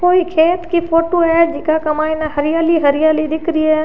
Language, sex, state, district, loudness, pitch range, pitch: Rajasthani, female, Rajasthan, Churu, -15 LUFS, 310-335 Hz, 320 Hz